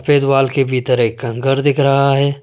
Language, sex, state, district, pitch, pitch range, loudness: Hindi, male, Arunachal Pradesh, Lower Dibang Valley, 135 Hz, 130-140 Hz, -15 LUFS